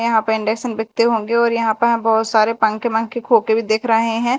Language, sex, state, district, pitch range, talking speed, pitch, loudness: Hindi, female, Madhya Pradesh, Dhar, 220-235 Hz, 230 wpm, 225 Hz, -17 LUFS